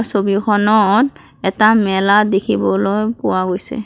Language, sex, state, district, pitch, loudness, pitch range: Assamese, female, Assam, Kamrup Metropolitan, 205 Hz, -15 LUFS, 195-215 Hz